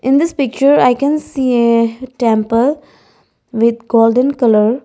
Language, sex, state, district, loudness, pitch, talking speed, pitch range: English, female, Arunachal Pradesh, Lower Dibang Valley, -13 LUFS, 250 Hz, 135 wpm, 230-275 Hz